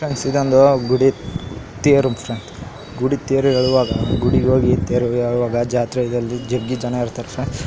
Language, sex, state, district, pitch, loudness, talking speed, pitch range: Kannada, male, Karnataka, Raichur, 125 Hz, -18 LUFS, 115 wpm, 120-135 Hz